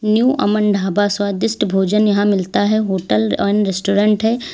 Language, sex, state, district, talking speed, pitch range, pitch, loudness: Hindi, female, Uttar Pradesh, Lalitpur, 160 wpm, 195-215 Hz, 205 Hz, -16 LUFS